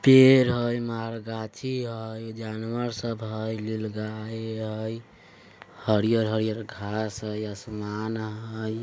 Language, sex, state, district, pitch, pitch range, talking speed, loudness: Hindi, male, Bihar, Vaishali, 110 Hz, 110-115 Hz, 95 wpm, -27 LUFS